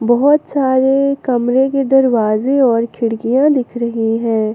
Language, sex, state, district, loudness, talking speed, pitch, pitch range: Hindi, female, Jharkhand, Garhwa, -14 LUFS, 130 wpm, 250 Hz, 230-270 Hz